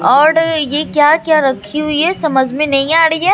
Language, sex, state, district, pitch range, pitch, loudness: Hindi, female, Bihar, Katihar, 295-325 Hz, 305 Hz, -13 LUFS